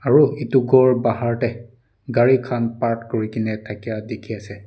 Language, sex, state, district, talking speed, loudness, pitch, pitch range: Nagamese, male, Nagaland, Dimapur, 165 wpm, -20 LUFS, 120 Hz, 110-125 Hz